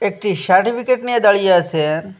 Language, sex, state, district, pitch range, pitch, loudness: Bengali, male, Assam, Hailakandi, 180-225 Hz, 200 Hz, -15 LUFS